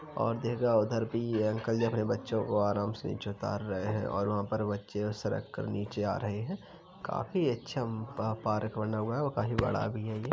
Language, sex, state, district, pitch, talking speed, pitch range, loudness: Hindi, male, Uttar Pradesh, Jalaun, 110 Hz, 220 wpm, 105-115 Hz, -33 LUFS